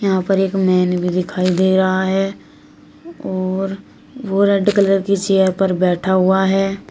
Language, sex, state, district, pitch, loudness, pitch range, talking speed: Hindi, female, Uttar Pradesh, Shamli, 190 Hz, -16 LUFS, 185-195 Hz, 165 wpm